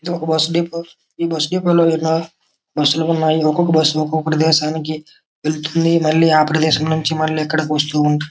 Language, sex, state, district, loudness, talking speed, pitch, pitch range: Telugu, male, Andhra Pradesh, Srikakulam, -16 LUFS, 130 wpm, 160 Hz, 155-165 Hz